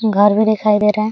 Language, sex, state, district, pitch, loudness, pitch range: Hindi, female, Uttar Pradesh, Hamirpur, 210 Hz, -14 LUFS, 210-215 Hz